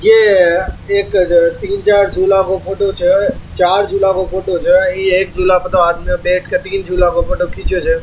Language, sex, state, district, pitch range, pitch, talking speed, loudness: Marwari, male, Rajasthan, Churu, 185-270 Hz, 195 Hz, 200 wpm, -13 LUFS